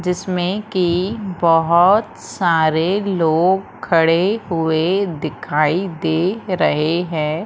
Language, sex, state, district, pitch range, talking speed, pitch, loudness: Hindi, female, Madhya Pradesh, Umaria, 160-190 Hz, 90 wpm, 175 Hz, -17 LUFS